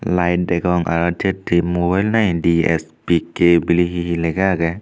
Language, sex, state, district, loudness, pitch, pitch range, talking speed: Chakma, male, Tripura, Unakoti, -17 LUFS, 85 Hz, 85-90 Hz, 150 wpm